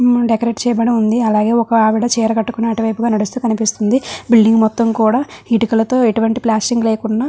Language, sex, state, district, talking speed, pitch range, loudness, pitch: Telugu, female, Andhra Pradesh, Visakhapatnam, 175 wpm, 220-235 Hz, -15 LUFS, 225 Hz